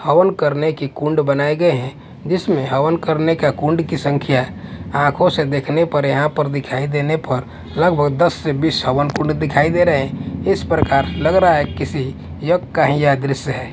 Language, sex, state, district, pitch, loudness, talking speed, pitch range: Hindi, male, Punjab, Kapurthala, 145 Hz, -17 LUFS, 195 wpm, 140-160 Hz